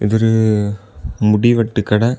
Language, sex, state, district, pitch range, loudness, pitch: Tamil, male, Tamil Nadu, Kanyakumari, 105-115 Hz, -15 LUFS, 105 Hz